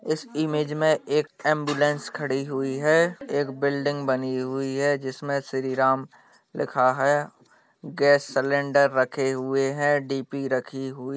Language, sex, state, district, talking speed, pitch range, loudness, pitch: Hindi, male, Bihar, Bhagalpur, 145 wpm, 135-145 Hz, -24 LUFS, 140 Hz